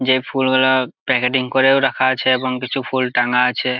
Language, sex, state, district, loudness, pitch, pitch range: Bengali, male, West Bengal, Jalpaiguri, -17 LUFS, 130 Hz, 125-130 Hz